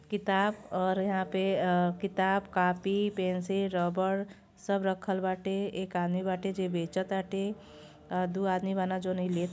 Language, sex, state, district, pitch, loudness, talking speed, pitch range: Bhojpuri, female, Uttar Pradesh, Gorakhpur, 190 Hz, -31 LUFS, 165 wpm, 185-195 Hz